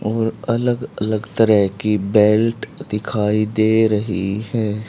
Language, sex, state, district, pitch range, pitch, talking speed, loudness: Hindi, male, Haryana, Charkhi Dadri, 105-110 Hz, 110 Hz, 125 wpm, -18 LUFS